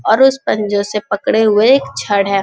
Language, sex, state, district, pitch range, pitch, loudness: Hindi, male, Bihar, Jamui, 200-260 Hz, 210 Hz, -14 LUFS